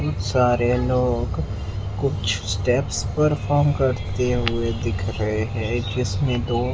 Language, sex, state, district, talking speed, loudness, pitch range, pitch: Hindi, male, Maharashtra, Mumbai Suburban, 105 wpm, -22 LUFS, 100-125 Hz, 115 Hz